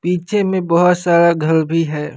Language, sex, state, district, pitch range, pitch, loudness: Hindi, male, Bihar, West Champaran, 160-180 Hz, 170 Hz, -15 LUFS